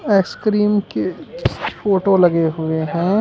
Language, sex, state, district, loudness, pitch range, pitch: Hindi, male, Uttar Pradesh, Shamli, -18 LUFS, 165-210 Hz, 195 Hz